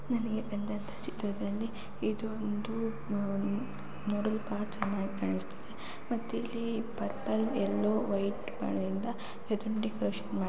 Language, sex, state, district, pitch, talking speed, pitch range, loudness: Kannada, female, Karnataka, Raichur, 215 Hz, 105 wpm, 200-225 Hz, -35 LUFS